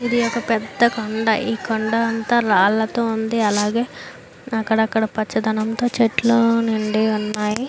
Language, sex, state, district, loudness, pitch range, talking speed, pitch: Telugu, female, Andhra Pradesh, Anantapur, -19 LUFS, 215-235 Hz, 125 wpm, 225 Hz